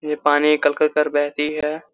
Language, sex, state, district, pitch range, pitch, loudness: Hindi, male, Chhattisgarh, Korba, 145-150 Hz, 150 Hz, -19 LUFS